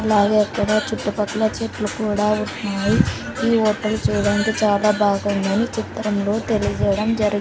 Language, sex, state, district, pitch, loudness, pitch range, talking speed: Telugu, female, Andhra Pradesh, Sri Satya Sai, 210 Hz, -20 LUFS, 205-220 Hz, 115 wpm